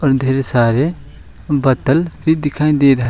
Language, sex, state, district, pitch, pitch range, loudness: Hindi, male, West Bengal, Alipurduar, 140 Hz, 130-150 Hz, -15 LUFS